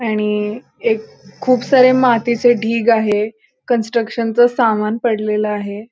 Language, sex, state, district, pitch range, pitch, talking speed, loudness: Marathi, female, Maharashtra, Pune, 215-245 Hz, 230 Hz, 130 wpm, -16 LUFS